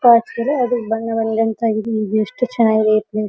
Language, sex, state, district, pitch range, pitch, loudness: Kannada, female, Karnataka, Dharwad, 215-235 Hz, 225 Hz, -17 LUFS